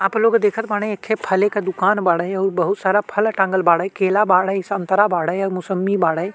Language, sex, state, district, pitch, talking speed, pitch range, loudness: Bhojpuri, male, Uttar Pradesh, Deoria, 195 Hz, 210 wpm, 185-205 Hz, -18 LUFS